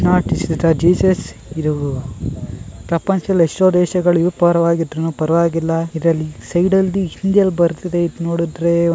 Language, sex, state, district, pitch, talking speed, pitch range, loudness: Kannada, male, Karnataka, Gulbarga, 170 Hz, 145 wpm, 165-180 Hz, -17 LUFS